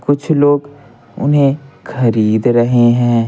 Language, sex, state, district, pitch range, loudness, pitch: Hindi, male, Bihar, Patna, 120-145 Hz, -13 LUFS, 125 Hz